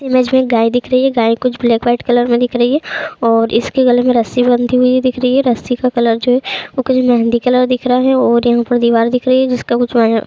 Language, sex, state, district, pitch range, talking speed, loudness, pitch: Hindi, female, Uttar Pradesh, Jalaun, 235-255 Hz, 280 wpm, -13 LUFS, 245 Hz